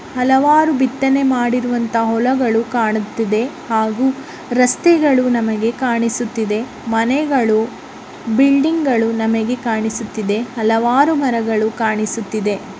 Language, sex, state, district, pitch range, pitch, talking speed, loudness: Kannada, male, Karnataka, Bellary, 220-260 Hz, 235 Hz, 75 wpm, -16 LUFS